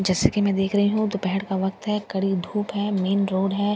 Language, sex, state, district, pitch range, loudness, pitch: Hindi, female, Bihar, Katihar, 190-205 Hz, -23 LUFS, 200 Hz